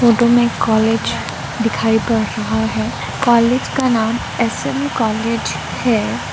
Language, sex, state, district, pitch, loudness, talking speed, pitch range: Hindi, female, Arunachal Pradesh, Lower Dibang Valley, 230 Hz, -17 LUFS, 135 wpm, 220-235 Hz